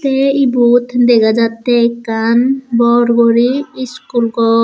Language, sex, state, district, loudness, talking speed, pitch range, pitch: Chakma, female, Tripura, Dhalai, -12 LUFS, 115 wpm, 230-255 Hz, 240 Hz